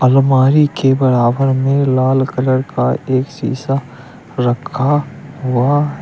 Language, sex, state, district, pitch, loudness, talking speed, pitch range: Hindi, male, Uttar Pradesh, Shamli, 130 Hz, -15 LUFS, 120 wpm, 130-135 Hz